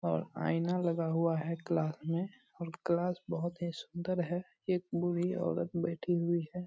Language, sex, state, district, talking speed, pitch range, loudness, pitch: Hindi, male, Bihar, Purnia, 170 wpm, 170-180 Hz, -35 LUFS, 170 Hz